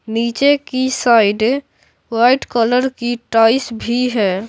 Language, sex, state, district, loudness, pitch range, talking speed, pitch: Hindi, male, Bihar, Patna, -15 LUFS, 225-255 Hz, 120 wpm, 235 Hz